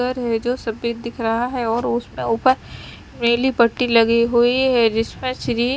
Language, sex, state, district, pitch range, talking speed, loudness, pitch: Hindi, female, Chandigarh, Chandigarh, 230-250 Hz, 175 wpm, -19 LUFS, 235 Hz